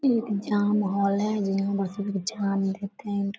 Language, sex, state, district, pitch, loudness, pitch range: Hindi, female, Bihar, Darbhanga, 200 Hz, -26 LUFS, 200-210 Hz